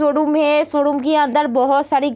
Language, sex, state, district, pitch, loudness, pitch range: Hindi, female, Uttar Pradesh, Deoria, 295 Hz, -16 LUFS, 285-300 Hz